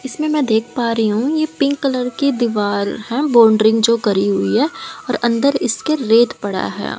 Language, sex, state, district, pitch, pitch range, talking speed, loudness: Hindi, female, Haryana, Jhajjar, 235 Hz, 220-280 Hz, 195 wpm, -16 LUFS